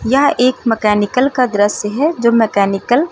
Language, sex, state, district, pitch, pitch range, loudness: Hindi, female, Uttar Pradesh, Lucknow, 235 Hz, 210-260 Hz, -14 LUFS